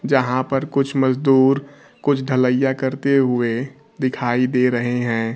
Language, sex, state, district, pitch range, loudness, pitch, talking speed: Hindi, male, Bihar, Kaimur, 125-135 Hz, -19 LUFS, 130 Hz, 135 wpm